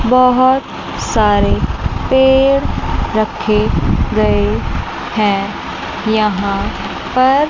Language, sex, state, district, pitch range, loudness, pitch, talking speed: Hindi, female, Chandigarh, Chandigarh, 200-255 Hz, -15 LUFS, 215 Hz, 65 wpm